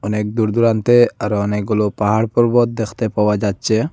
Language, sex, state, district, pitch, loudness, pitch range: Bengali, male, Assam, Hailakandi, 110 Hz, -17 LUFS, 105-115 Hz